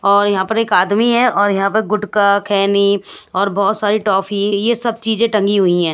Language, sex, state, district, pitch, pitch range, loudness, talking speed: Hindi, female, Bihar, West Champaran, 205 Hz, 200-215 Hz, -15 LUFS, 210 wpm